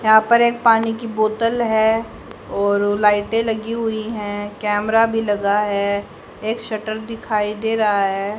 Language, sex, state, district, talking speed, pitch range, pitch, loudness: Hindi, female, Haryana, Rohtak, 155 wpm, 205-225 Hz, 220 Hz, -19 LUFS